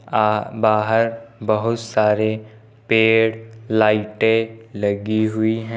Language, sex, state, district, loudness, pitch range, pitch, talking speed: Hindi, male, Uttar Pradesh, Lucknow, -19 LUFS, 110-115 Hz, 110 Hz, 85 wpm